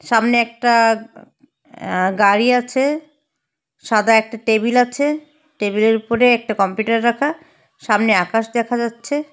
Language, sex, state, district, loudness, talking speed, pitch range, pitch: Bengali, female, Assam, Hailakandi, -17 LUFS, 115 wpm, 220-270 Hz, 235 Hz